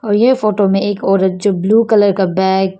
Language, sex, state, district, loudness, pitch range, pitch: Hindi, female, Arunachal Pradesh, Papum Pare, -13 LUFS, 190-210 Hz, 200 Hz